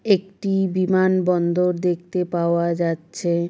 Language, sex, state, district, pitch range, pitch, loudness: Bengali, female, West Bengal, Jalpaiguri, 170-185 Hz, 180 Hz, -21 LUFS